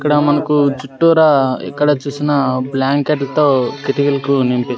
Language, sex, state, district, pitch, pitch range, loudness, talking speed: Telugu, male, Andhra Pradesh, Sri Satya Sai, 140 Hz, 135-150 Hz, -15 LUFS, 125 wpm